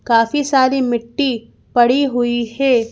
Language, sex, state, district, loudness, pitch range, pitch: Hindi, female, Madhya Pradesh, Bhopal, -16 LUFS, 235-270 Hz, 245 Hz